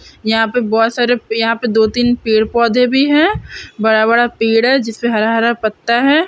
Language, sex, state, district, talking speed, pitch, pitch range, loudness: Hindi, female, Andhra Pradesh, Krishna, 190 wpm, 235 Hz, 225-245 Hz, -14 LUFS